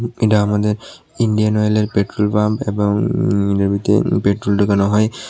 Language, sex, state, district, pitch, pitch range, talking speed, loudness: Bengali, male, Tripura, West Tripura, 105 Hz, 100-110 Hz, 135 wpm, -17 LUFS